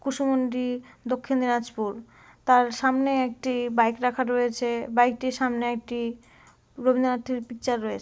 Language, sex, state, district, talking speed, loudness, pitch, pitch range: Bengali, female, West Bengal, Dakshin Dinajpur, 125 wpm, -25 LUFS, 245 Hz, 240-255 Hz